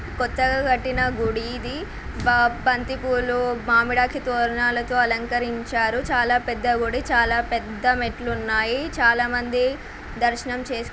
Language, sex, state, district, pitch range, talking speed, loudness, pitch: Telugu, female, Telangana, Nalgonda, 235-250 Hz, 120 wpm, -22 LUFS, 245 Hz